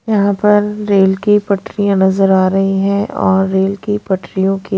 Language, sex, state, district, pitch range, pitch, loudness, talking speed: Hindi, female, Punjab, Pathankot, 190-205 Hz, 195 Hz, -14 LUFS, 175 wpm